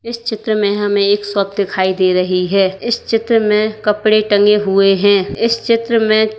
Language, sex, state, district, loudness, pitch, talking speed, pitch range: Hindi, female, Uttar Pradesh, Lalitpur, -14 LUFS, 210 Hz, 190 wpm, 195-220 Hz